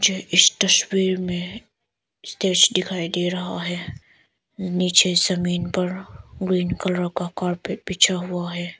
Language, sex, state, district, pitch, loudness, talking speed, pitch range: Hindi, female, Arunachal Pradesh, Lower Dibang Valley, 180 Hz, -20 LUFS, 125 wpm, 175-190 Hz